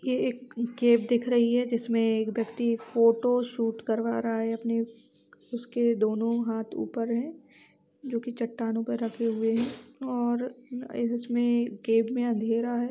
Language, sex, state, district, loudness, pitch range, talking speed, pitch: Hindi, female, Bihar, East Champaran, -28 LUFS, 230-245 Hz, 160 wpm, 235 Hz